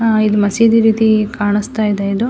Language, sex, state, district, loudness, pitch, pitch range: Kannada, female, Karnataka, Dakshina Kannada, -14 LUFS, 215 Hz, 205-225 Hz